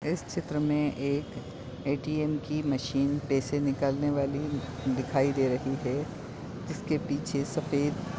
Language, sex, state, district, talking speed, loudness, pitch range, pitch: Hindi, female, Maharashtra, Nagpur, 130 wpm, -30 LUFS, 135-150 Hz, 140 Hz